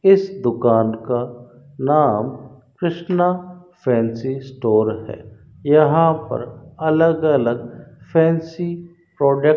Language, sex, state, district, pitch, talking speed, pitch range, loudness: Hindi, male, Rajasthan, Bikaner, 145 Hz, 95 wpm, 120-165 Hz, -19 LUFS